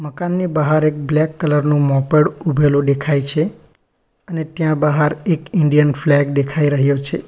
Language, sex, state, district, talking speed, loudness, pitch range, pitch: Gujarati, male, Gujarat, Valsad, 155 wpm, -16 LUFS, 145-160 Hz, 150 Hz